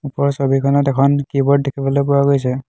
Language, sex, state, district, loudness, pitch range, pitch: Assamese, male, Assam, Hailakandi, -16 LUFS, 135-140 Hz, 140 Hz